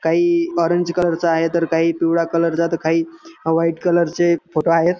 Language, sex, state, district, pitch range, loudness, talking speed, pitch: Marathi, male, Maharashtra, Dhule, 165-170 Hz, -18 LUFS, 190 wpm, 170 Hz